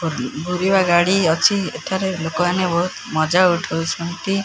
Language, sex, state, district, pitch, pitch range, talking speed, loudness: Odia, male, Odisha, Khordha, 175 Hz, 165-190 Hz, 120 wpm, -18 LUFS